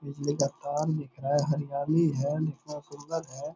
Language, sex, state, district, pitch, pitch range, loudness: Hindi, male, Bihar, Purnia, 145 Hz, 140-150 Hz, -30 LUFS